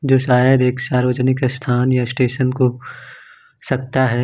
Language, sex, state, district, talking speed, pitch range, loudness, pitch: Hindi, male, Jharkhand, Ranchi, 140 wpm, 125-130 Hz, -17 LUFS, 130 Hz